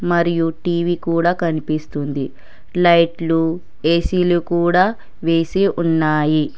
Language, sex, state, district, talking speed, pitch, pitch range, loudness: Telugu, female, Telangana, Hyderabad, 90 wpm, 170 Hz, 160-175 Hz, -18 LUFS